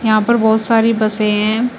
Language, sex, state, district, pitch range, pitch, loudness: Hindi, female, Uttar Pradesh, Shamli, 215-230 Hz, 220 Hz, -14 LUFS